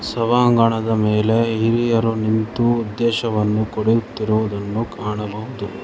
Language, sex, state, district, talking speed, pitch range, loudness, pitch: Kannada, male, Karnataka, Bangalore, 70 wpm, 110-115 Hz, -19 LUFS, 110 Hz